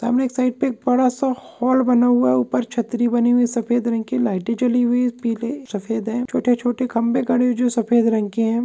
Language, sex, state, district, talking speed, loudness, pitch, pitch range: Hindi, female, Goa, North and South Goa, 235 wpm, -19 LUFS, 240 Hz, 230-250 Hz